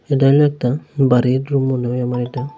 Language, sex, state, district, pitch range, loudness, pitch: Bengali, male, Tripura, Unakoti, 125-140 Hz, -17 LUFS, 130 Hz